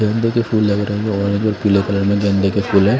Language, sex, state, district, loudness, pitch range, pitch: Hindi, male, Punjab, Fazilka, -16 LUFS, 100-110 Hz, 100 Hz